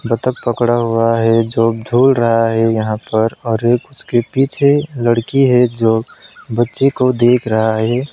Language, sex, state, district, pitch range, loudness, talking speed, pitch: Hindi, male, West Bengal, Alipurduar, 115-130 Hz, -14 LUFS, 170 wpm, 120 Hz